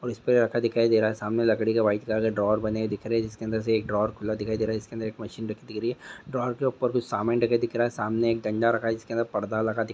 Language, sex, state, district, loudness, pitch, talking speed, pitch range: Hindi, male, Andhra Pradesh, Visakhapatnam, -26 LUFS, 115 Hz, 315 wpm, 110-115 Hz